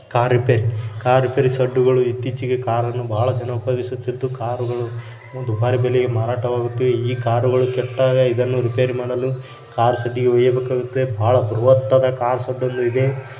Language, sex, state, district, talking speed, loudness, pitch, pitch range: Kannada, male, Karnataka, Bijapur, 125 wpm, -19 LUFS, 125 Hz, 120-130 Hz